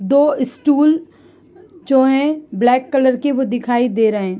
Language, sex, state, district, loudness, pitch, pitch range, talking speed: Hindi, female, Bihar, East Champaran, -16 LUFS, 270 Hz, 245-300 Hz, 150 wpm